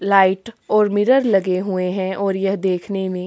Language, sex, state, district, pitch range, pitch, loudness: Hindi, female, Chhattisgarh, Kabirdham, 185-200 Hz, 195 Hz, -18 LUFS